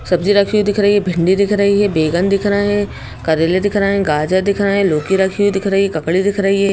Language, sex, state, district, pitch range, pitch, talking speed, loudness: Hindi, female, Madhya Pradesh, Bhopal, 180-200 Hz, 195 Hz, 275 wpm, -15 LUFS